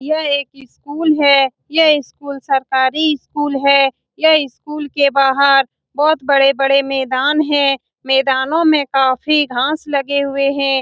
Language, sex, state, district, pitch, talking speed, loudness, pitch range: Hindi, female, Bihar, Saran, 280 Hz, 140 wpm, -14 LUFS, 270-295 Hz